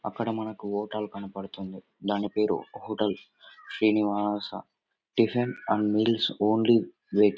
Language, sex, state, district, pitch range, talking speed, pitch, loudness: Telugu, male, Andhra Pradesh, Anantapur, 100-110 Hz, 115 wpm, 105 Hz, -28 LUFS